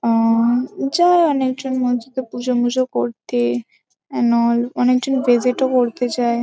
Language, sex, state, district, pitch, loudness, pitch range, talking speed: Bengali, female, West Bengal, Kolkata, 245 Hz, -18 LUFS, 235-255 Hz, 110 wpm